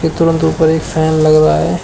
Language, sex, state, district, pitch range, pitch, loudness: Hindi, male, Uttar Pradesh, Shamli, 155-160 Hz, 160 Hz, -12 LUFS